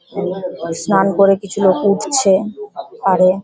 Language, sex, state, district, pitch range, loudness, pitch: Bengali, female, West Bengal, Paschim Medinipur, 185-200 Hz, -15 LUFS, 195 Hz